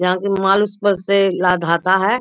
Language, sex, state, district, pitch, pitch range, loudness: Hindi, female, Bihar, Bhagalpur, 195 Hz, 180-200 Hz, -16 LUFS